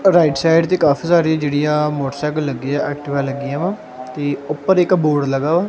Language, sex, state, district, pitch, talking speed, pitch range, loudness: Punjabi, male, Punjab, Kapurthala, 150 Hz, 190 wpm, 140-165 Hz, -17 LUFS